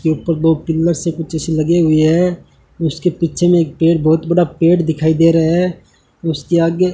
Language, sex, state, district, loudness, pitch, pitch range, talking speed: Hindi, male, Rajasthan, Bikaner, -15 LUFS, 165 Hz, 160-170 Hz, 155 wpm